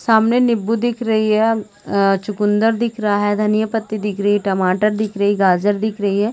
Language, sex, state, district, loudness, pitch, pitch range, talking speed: Hindi, female, Chhattisgarh, Raigarh, -17 LUFS, 210 Hz, 205-220 Hz, 210 wpm